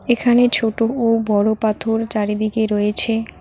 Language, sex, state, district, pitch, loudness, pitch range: Bengali, female, West Bengal, Cooch Behar, 225 Hz, -17 LUFS, 215-230 Hz